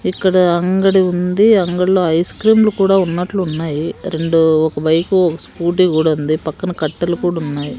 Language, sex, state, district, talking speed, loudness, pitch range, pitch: Telugu, female, Andhra Pradesh, Sri Satya Sai, 155 wpm, -15 LUFS, 160-185 Hz, 175 Hz